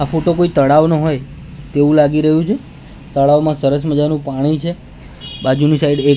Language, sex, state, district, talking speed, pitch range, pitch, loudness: Gujarati, male, Gujarat, Gandhinagar, 165 wpm, 145-155 Hz, 150 Hz, -14 LUFS